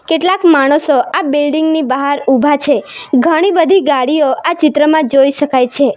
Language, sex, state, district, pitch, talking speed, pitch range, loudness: Gujarati, female, Gujarat, Valsad, 290 Hz, 160 wpm, 275-320 Hz, -11 LUFS